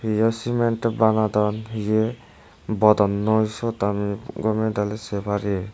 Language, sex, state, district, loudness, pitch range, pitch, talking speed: Chakma, male, Tripura, West Tripura, -22 LUFS, 105-110 Hz, 110 Hz, 115 wpm